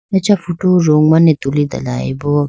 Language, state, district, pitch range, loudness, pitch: Idu Mishmi, Arunachal Pradesh, Lower Dibang Valley, 145-175 Hz, -14 LUFS, 155 Hz